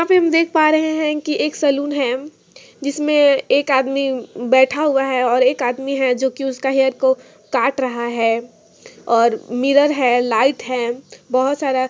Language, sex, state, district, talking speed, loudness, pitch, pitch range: Hindi, female, Jharkhand, Sahebganj, 170 wpm, -17 LUFS, 265 Hz, 250-290 Hz